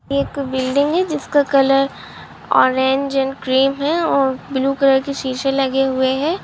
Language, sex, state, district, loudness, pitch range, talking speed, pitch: Hindi, female, Bihar, Samastipur, -17 LUFS, 265-280 Hz, 160 wpm, 275 Hz